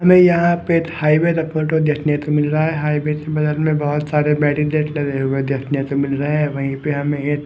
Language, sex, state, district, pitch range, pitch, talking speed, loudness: Hindi, male, Bihar, West Champaran, 145-155 Hz, 150 Hz, 235 wpm, -18 LUFS